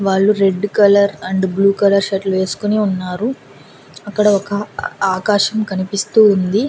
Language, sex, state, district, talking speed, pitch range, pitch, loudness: Telugu, female, Andhra Pradesh, Annamaya, 125 wpm, 190-210 Hz, 200 Hz, -15 LUFS